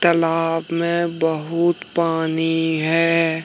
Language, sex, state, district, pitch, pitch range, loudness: Hindi, male, Jharkhand, Deoghar, 165 Hz, 160-170 Hz, -20 LUFS